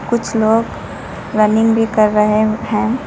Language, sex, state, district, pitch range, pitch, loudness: Hindi, female, Uttar Pradesh, Lucknow, 215-225 Hz, 220 Hz, -14 LUFS